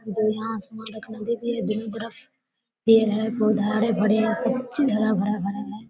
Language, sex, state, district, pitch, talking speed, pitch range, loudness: Hindi, female, Bihar, Darbhanga, 220 Hz, 175 wpm, 215-230 Hz, -23 LUFS